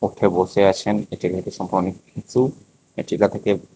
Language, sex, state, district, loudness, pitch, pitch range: Bengali, male, Tripura, West Tripura, -21 LUFS, 100 Hz, 95-105 Hz